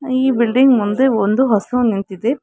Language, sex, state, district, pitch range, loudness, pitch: Kannada, female, Karnataka, Bangalore, 215-260 Hz, -15 LUFS, 245 Hz